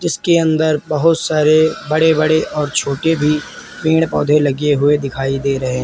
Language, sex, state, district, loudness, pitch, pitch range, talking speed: Hindi, male, Uttar Pradesh, Lalitpur, -15 LUFS, 150 Hz, 145-160 Hz, 175 wpm